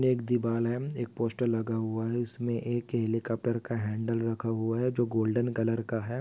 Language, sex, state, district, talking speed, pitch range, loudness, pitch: Hindi, male, Andhra Pradesh, Visakhapatnam, 185 wpm, 115-120 Hz, -30 LUFS, 115 Hz